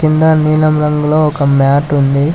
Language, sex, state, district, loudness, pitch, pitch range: Telugu, male, Telangana, Hyderabad, -11 LUFS, 150 Hz, 140-155 Hz